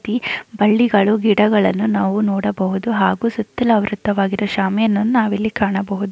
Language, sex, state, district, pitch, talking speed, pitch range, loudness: Kannada, female, Karnataka, Chamarajanagar, 210 Hz, 110 wpm, 200-220 Hz, -17 LUFS